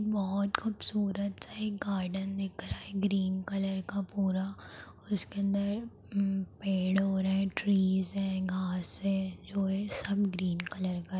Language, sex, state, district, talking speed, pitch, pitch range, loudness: Hindi, female, Bihar, Darbhanga, 150 wpm, 195 Hz, 190-200 Hz, -32 LUFS